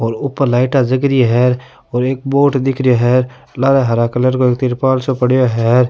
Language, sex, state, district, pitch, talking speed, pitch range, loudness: Rajasthani, male, Rajasthan, Nagaur, 130 Hz, 215 wpm, 125-135 Hz, -14 LUFS